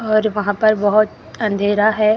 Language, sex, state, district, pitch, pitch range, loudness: Hindi, female, Karnataka, Koppal, 215 Hz, 205-215 Hz, -17 LUFS